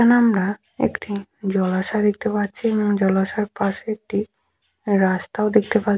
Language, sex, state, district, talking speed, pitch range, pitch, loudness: Bengali, female, West Bengal, Malda, 130 wpm, 195-215 Hz, 205 Hz, -21 LUFS